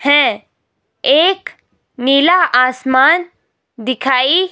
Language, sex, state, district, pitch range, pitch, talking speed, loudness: Hindi, female, Himachal Pradesh, Shimla, 255-345 Hz, 275 Hz, 65 wpm, -13 LUFS